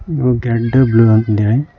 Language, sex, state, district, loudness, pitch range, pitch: Kannada, male, Karnataka, Koppal, -13 LUFS, 110-130 Hz, 120 Hz